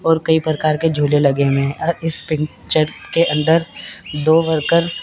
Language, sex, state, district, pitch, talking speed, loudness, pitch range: Hindi, male, Chandigarh, Chandigarh, 160 Hz, 180 wpm, -17 LUFS, 150-165 Hz